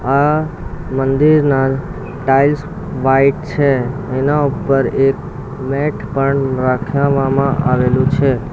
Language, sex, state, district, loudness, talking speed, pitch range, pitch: Gujarati, male, Gujarat, Valsad, -15 LUFS, 90 wpm, 135-145 Hz, 135 Hz